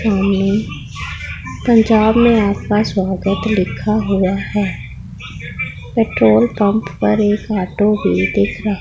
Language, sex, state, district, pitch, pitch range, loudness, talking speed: Hindi, female, Punjab, Pathankot, 200 Hz, 190-215 Hz, -15 LUFS, 110 wpm